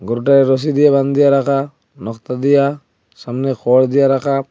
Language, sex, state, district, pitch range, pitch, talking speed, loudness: Bengali, male, Assam, Hailakandi, 125-140 Hz, 135 Hz, 135 wpm, -14 LUFS